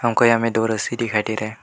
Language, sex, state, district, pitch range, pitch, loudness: Hindi, male, Arunachal Pradesh, Lower Dibang Valley, 110-115 Hz, 115 Hz, -20 LUFS